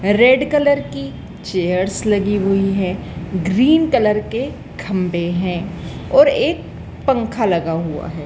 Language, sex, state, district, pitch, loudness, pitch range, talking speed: Hindi, female, Madhya Pradesh, Dhar, 195 Hz, -17 LUFS, 175-225 Hz, 130 wpm